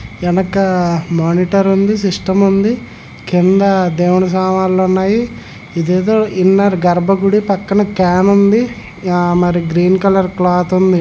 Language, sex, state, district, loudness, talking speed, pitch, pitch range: Telugu, male, Andhra Pradesh, Srikakulam, -13 LUFS, 105 wpm, 185 Hz, 180-195 Hz